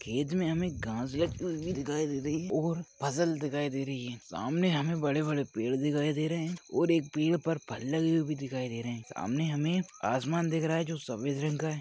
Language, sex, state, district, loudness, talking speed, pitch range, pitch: Hindi, male, Chhattisgarh, Balrampur, -32 LUFS, 235 wpm, 140-165 Hz, 155 Hz